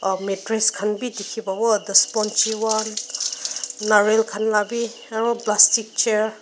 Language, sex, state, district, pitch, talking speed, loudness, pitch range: Nagamese, female, Nagaland, Dimapur, 215 Hz, 130 wpm, -20 LUFS, 210-225 Hz